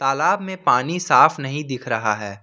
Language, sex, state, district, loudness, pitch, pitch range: Hindi, male, Jharkhand, Ranchi, -19 LUFS, 135 Hz, 115-160 Hz